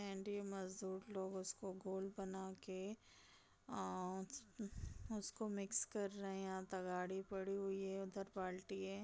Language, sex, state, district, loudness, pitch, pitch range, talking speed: Hindi, female, Uttar Pradesh, Deoria, -47 LUFS, 195 Hz, 190-200 Hz, 140 wpm